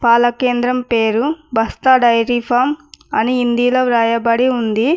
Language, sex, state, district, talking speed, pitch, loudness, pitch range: Telugu, female, Telangana, Mahabubabad, 110 wpm, 240 Hz, -15 LUFS, 230-255 Hz